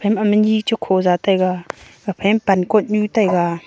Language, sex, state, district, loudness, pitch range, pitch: Wancho, female, Arunachal Pradesh, Longding, -17 LUFS, 185-215 Hz, 200 Hz